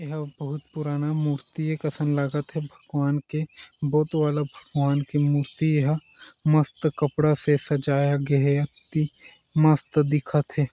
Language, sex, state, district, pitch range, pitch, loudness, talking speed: Chhattisgarhi, male, Chhattisgarh, Jashpur, 145-155 Hz, 150 Hz, -25 LUFS, 155 wpm